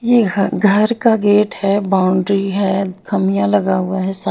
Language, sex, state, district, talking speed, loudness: Hindi, female, Haryana, Jhajjar, 165 wpm, -15 LUFS